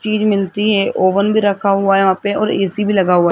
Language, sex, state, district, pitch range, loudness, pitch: Hindi, female, Rajasthan, Jaipur, 195-210 Hz, -15 LUFS, 200 Hz